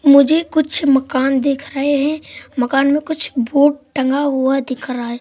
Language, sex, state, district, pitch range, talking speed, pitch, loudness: Hindi, male, Madhya Pradesh, Katni, 265-290 Hz, 160 wpm, 280 Hz, -16 LUFS